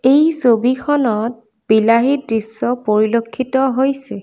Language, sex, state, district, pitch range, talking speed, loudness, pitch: Assamese, female, Assam, Kamrup Metropolitan, 220-265 Hz, 85 wpm, -16 LUFS, 245 Hz